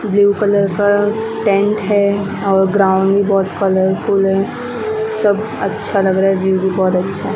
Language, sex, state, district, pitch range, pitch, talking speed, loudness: Hindi, female, Maharashtra, Mumbai Suburban, 195-205 Hz, 200 Hz, 155 wpm, -15 LUFS